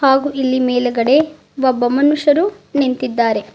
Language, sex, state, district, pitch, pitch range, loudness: Kannada, female, Karnataka, Bidar, 265 Hz, 245-290 Hz, -16 LUFS